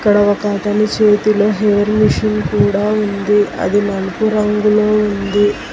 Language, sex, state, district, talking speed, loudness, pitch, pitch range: Telugu, female, Telangana, Hyderabad, 125 wpm, -14 LUFS, 210 Hz, 205-215 Hz